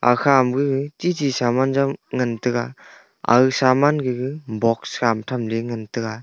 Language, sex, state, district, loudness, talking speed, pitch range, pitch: Wancho, male, Arunachal Pradesh, Longding, -20 LUFS, 145 wpm, 120-135 Hz, 125 Hz